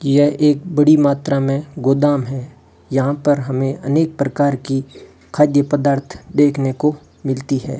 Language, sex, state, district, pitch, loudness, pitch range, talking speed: Hindi, male, Rajasthan, Bikaner, 140 Hz, -17 LUFS, 135-145 Hz, 145 wpm